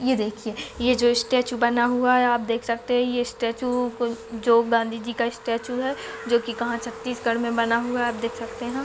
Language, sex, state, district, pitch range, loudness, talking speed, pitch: Hindi, female, Chhattisgarh, Bilaspur, 230-245 Hz, -24 LUFS, 215 wpm, 235 Hz